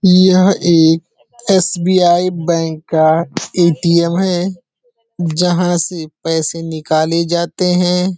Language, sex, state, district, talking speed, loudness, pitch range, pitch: Hindi, male, Uttar Pradesh, Deoria, 95 wpm, -14 LUFS, 165-180 Hz, 175 Hz